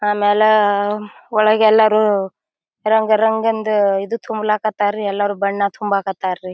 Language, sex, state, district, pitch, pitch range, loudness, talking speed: Kannada, female, Karnataka, Bijapur, 210 Hz, 200-215 Hz, -17 LUFS, 90 wpm